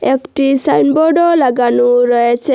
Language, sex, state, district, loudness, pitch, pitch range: Bengali, female, Assam, Hailakandi, -12 LUFS, 265 Hz, 245-285 Hz